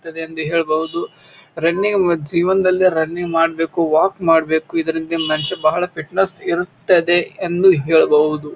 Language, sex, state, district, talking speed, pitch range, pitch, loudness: Kannada, male, Karnataka, Bijapur, 120 wpm, 160-175 Hz, 165 Hz, -17 LUFS